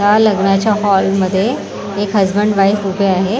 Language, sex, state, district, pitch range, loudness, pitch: Marathi, female, Maharashtra, Mumbai Suburban, 195-205 Hz, -14 LUFS, 200 Hz